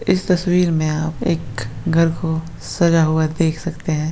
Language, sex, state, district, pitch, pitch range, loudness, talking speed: Hindi, male, Bihar, Begusarai, 165 Hz, 155-170 Hz, -19 LUFS, 175 wpm